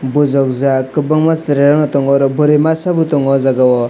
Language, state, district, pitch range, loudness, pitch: Kokborok, Tripura, West Tripura, 135-150 Hz, -13 LUFS, 140 Hz